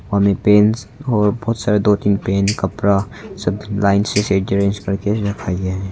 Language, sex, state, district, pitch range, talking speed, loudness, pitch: Hindi, male, Arunachal Pradesh, Longding, 100-105 Hz, 170 wpm, -17 LUFS, 100 Hz